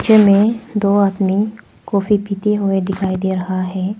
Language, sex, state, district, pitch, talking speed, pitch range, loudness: Hindi, female, Arunachal Pradesh, Papum Pare, 200 Hz, 150 wpm, 190-210 Hz, -16 LUFS